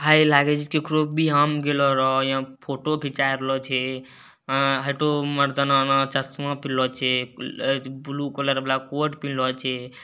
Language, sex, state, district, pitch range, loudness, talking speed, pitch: Maithili, male, Bihar, Bhagalpur, 130-145 Hz, -23 LUFS, 100 wpm, 135 Hz